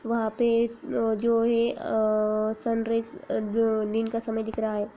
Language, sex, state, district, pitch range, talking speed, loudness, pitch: Hindi, female, Bihar, Saharsa, 220-230 Hz, 155 wpm, -26 LUFS, 225 Hz